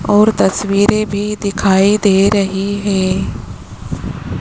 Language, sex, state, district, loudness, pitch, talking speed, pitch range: Hindi, male, Rajasthan, Jaipur, -14 LUFS, 200 Hz, 95 wpm, 195-205 Hz